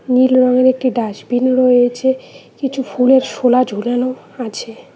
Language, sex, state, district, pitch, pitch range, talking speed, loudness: Bengali, female, West Bengal, Cooch Behar, 250 Hz, 245-260 Hz, 120 wpm, -15 LUFS